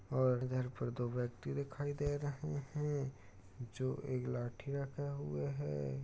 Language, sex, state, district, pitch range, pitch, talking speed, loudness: Hindi, male, Uttar Pradesh, Hamirpur, 120-140 Hz, 130 Hz, 150 wpm, -40 LUFS